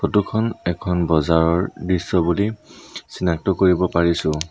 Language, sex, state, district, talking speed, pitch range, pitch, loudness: Assamese, male, Assam, Sonitpur, 120 wpm, 85-95 Hz, 90 Hz, -20 LUFS